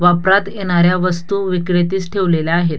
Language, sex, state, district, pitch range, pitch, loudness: Marathi, female, Maharashtra, Dhule, 175-190 Hz, 180 Hz, -16 LUFS